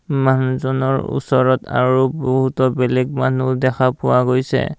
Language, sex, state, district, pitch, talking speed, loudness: Assamese, male, Assam, Kamrup Metropolitan, 130 Hz, 110 wpm, -17 LUFS